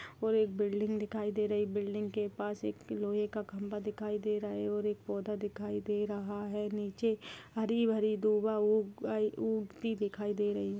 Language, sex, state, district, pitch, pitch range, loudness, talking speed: Hindi, female, Uttar Pradesh, Gorakhpur, 210 Hz, 205-215 Hz, -35 LUFS, 195 wpm